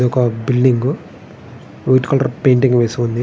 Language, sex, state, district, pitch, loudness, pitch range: Telugu, male, Andhra Pradesh, Srikakulam, 125 Hz, -15 LUFS, 120-130 Hz